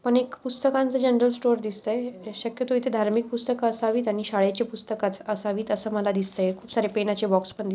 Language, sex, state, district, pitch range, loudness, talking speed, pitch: Marathi, female, Maharashtra, Aurangabad, 210-245 Hz, -26 LUFS, 180 wpm, 220 Hz